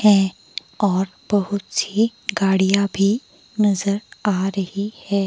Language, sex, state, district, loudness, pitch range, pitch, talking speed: Hindi, female, Himachal Pradesh, Shimla, -21 LUFS, 195-205 Hz, 200 Hz, 115 wpm